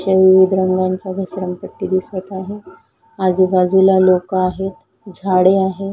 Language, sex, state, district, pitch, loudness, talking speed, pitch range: Marathi, female, Maharashtra, Solapur, 190 Hz, -16 LUFS, 110 wpm, 185-190 Hz